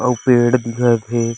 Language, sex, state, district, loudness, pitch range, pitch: Chhattisgarhi, male, Chhattisgarh, Raigarh, -16 LUFS, 115-125 Hz, 120 Hz